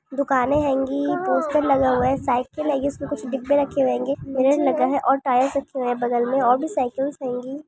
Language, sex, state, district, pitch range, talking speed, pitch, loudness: Hindi, female, Chhattisgarh, Jashpur, 255-285 Hz, 195 wpm, 270 Hz, -21 LUFS